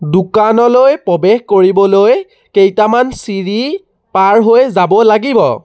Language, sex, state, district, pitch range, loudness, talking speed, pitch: Assamese, male, Assam, Sonitpur, 195-260 Hz, -10 LUFS, 95 wpm, 220 Hz